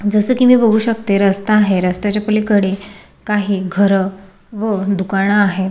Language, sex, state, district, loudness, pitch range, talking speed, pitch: Marathi, female, Maharashtra, Sindhudurg, -15 LUFS, 195-215 Hz, 145 wpm, 200 Hz